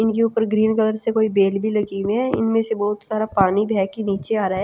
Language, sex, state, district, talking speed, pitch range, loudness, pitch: Hindi, female, Chhattisgarh, Raipur, 285 wpm, 200-220 Hz, -20 LUFS, 215 Hz